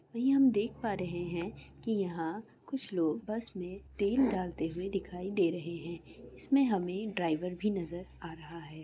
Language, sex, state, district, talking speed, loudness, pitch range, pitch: Hindi, female, Andhra Pradesh, Guntur, 185 wpm, -34 LUFS, 170-210 Hz, 185 Hz